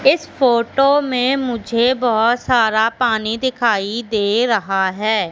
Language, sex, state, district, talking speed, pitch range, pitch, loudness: Hindi, female, Madhya Pradesh, Katni, 125 wpm, 220-255 Hz, 235 Hz, -17 LUFS